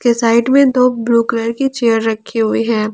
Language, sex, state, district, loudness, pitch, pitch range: Hindi, female, Jharkhand, Ranchi, -14 LUFS, 230 Hz, 225-250 Hz